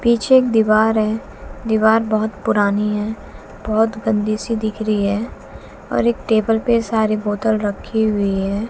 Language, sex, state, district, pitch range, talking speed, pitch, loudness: Hindi, female, Haryana, Jhajjar, 210-225 Hz, 160 wpm, 220 Hz, -18 LUFS